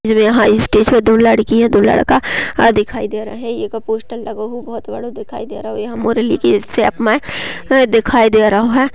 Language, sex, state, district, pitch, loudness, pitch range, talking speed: Hindi, female, Uttar Pradesh, Ghazipur, 225 Hz, -13 LUFS, 215-230 Hz, 210 wpm